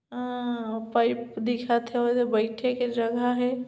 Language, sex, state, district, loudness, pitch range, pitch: Chhattisgarhi, female, Chhattisgarh, Bilaspur, -27 LUFS, 235-245 Hz, 240 Hz